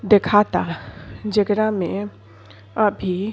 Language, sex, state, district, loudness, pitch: Bhojpuri, female, Uttar Pradesh, Ghazipur, -20 LUFS, 195 Hz